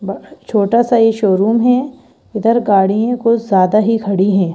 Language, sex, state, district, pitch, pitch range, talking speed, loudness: Hindi, female, Madhya Pradesh, Bhopal, 220 Hz, 195-235 Hz, 160 wpm, -13 LUFS